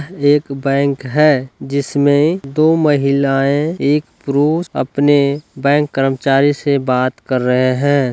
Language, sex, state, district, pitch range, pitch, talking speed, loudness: Hindi, male, Bihar, Lakhisarai, 135-150 Hz, 140 Hz, 120 wpm, -15 LUFS